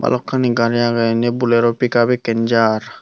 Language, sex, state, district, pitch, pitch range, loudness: Chakma, male, Tripura, Unakoti, 120 Hz, 115-120 Hz, -16 LUFS